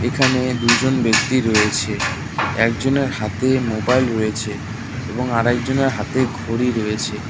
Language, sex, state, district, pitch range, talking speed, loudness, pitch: Bengali, male, West Bengal, Cooch Behar, 110-130 Hz, 105 wpm, -19 LUFS, 120 Hz